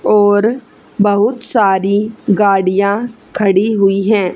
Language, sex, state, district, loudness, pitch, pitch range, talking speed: Hindi, female, Haryana, Charkhi Dadri, -13 LUFS, 205 Hz, 195-215 Hz, 95 wpm